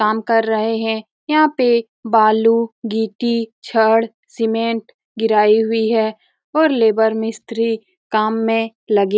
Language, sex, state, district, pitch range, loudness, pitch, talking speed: Hindi, female, Bihar, Saran, 220-230 Hz, -17 LUFS, 225 Hz, 130 wpm